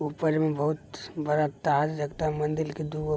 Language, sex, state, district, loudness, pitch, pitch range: Maithili, male, Bihar, Begusarai, -28 LUFS, 150 Hz, 150-155 Hz